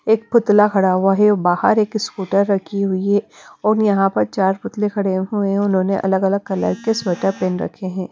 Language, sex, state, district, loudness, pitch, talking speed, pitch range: Hindi, female, Punjab, Kapurthala, -18 LUFS, 195 Hz, 205 wpm, 190-210 Hz